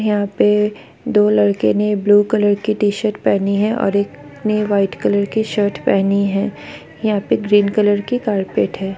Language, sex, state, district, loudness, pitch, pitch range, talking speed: Hindi, female, Bihar, Bhagalpur, -17 LUFS, 205 Hz, 200-210 Hz, 180 wpm